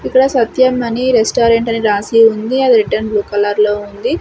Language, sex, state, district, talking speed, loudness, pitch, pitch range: Telugu, female, Andhra Pradesh, Sri Satya Sai, 200 wpm, -13 LUFS, 230 Hz, 210-255 Hz